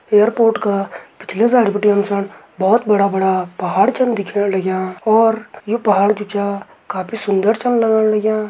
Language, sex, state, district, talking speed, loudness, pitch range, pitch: Garhwali, male, Uttarakhand, Tehri Garhwal, 170 wpm, -16 LUFS, 200-220 Hz, 210 Hz